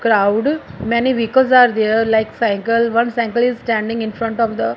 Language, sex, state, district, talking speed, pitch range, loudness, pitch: English, female, Punjab, Fazilka, 190 wpm, 220-235 Hz, -16 LUFS, 230 Hz